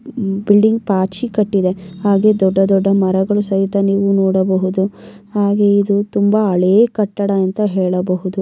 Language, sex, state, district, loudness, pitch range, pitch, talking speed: Kannada, female, Karnataka, Mysore, -15 LUFS, 190-205 Hz, 195 Hz, 120 wpm